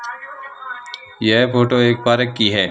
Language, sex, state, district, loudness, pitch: Hindi, male, Rajasthan, Bikaner, -16 LUFS, 125 Hz